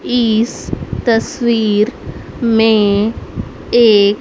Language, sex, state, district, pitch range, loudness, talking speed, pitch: Hindi, female, Haryana, Rohtak, 210-235 Hz, -14 LUFS, 70 wpm, 225 Hz